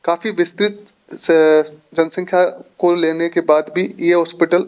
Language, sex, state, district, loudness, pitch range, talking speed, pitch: Hindi, male, Rajasthan, Jaipur, -16 LUFS, 165-180 Hz, 155 wpm, 170 Hz